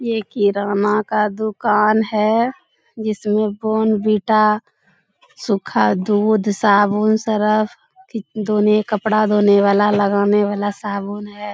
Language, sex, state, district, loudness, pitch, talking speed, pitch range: Hindi, female, Bihar, Bhagalpur, -17 LUFS, 210 Hz, 105 wpm, 205-215 Hz